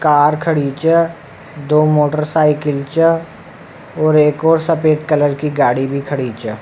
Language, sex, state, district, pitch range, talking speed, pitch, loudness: Rajasthani, male, Rajasthan, Nagaur, 145-160 Hz, 145 wpm, 150 Hz, -15 LUFS